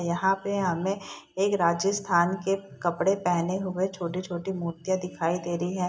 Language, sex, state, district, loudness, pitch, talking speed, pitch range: Hindi, female, Bihar, Saharsa, -27 LUFS, 185 Hz, 155 wpm, 175-195 Hz